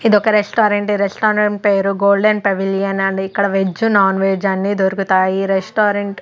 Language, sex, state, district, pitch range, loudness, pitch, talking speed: Telugu, female, Andhra Pradesh, Sri Satya Sai, 195-210 Hz, -15 LUFS, 200 Hz, 155 wpm